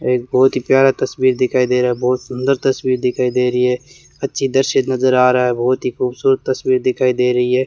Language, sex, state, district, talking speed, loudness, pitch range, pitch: Hindi, male, Rajasthan, Bikaner, 235 wpm, -16 LUFS, 125-130 Hz, 130 Hz